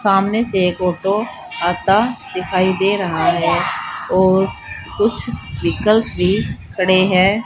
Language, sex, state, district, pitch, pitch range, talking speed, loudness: Hindi, female, Haryana, Charkhi Dadri, 190 Hz, 185-205 Hz, 120 wpm, -17 LUFS